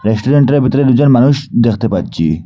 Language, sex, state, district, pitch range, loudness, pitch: Bengali, male, Assam, Hailakandi, 110-140 Hz, -11 LUFS, 125 Hz